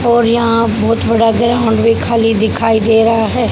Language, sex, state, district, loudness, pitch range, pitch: Hindi, female, Haryana, Jhajjar, -12 LUFS, 225-230 Hz, 225 Hz